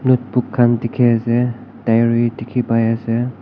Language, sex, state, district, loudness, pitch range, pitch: Nagamese, male, Nagaland, Kohima, -17 LUFS, 115-125 Hz, 120 Hz